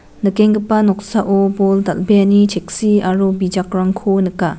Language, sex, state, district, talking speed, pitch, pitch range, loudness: Garo, female, Meghalaya, West Garo Hills, 105 wpm, 195 Hz, 185-205 Hz, -15 LUFS